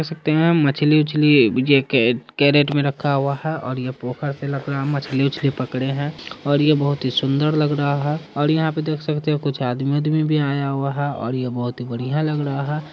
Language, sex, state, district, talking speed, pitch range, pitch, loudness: Hindi, male, Bihar, Saharsa, 225 wpm, 135-150 Hz, 145 Hz, -20 LUFS